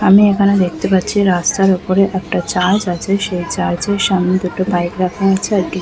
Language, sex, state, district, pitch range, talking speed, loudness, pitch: Bengali, female, West Bengal, Kolkata, 180-200 Hz, 185 wpm, -15 LUFS, 190 Hz